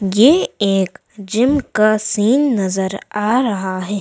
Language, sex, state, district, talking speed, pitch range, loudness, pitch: Hindi, female, Madhya Pradesh, Bhopal, 135 wpm, 195-235 Hz, -16 LUFS, 210 Hz